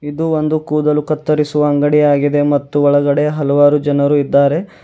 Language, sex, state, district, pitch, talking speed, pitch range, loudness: Kannada, male, Karnataka, Bidar, 145 Hz, 125 wpm, 145-150 Hz, -14 LUFS